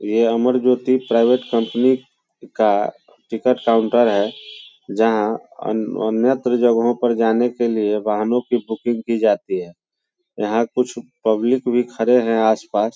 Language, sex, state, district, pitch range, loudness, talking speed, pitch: Hindi, male, Bihar, Muzaffarpur, 110-125 Hz, -18 LUFS, 135 wpm, 115 Hz